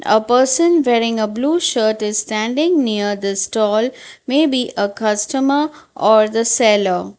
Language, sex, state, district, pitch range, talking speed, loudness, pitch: English, female, Gujarat, Valsad, 210-270 Hz, 150 wpm, -16 LUFS, 225 Hz